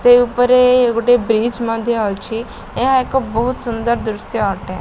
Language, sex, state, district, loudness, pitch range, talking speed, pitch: Odia, female, Odisha, Malkangiri, -16 LUFS, 225-245 Hz, 150 wpm, 235 Hz